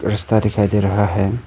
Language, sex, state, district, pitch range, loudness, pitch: Hindi, male, Arunachal Pradesh, Papum Pare, 100-105 Hz, -17 LUFS, 105 Hz